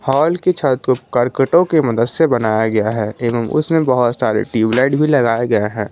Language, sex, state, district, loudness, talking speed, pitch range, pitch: Hindi, male, Jharkhand, Garhwa, -15 LUFS, 205 wpm, 115-140 Hz, 125 Hz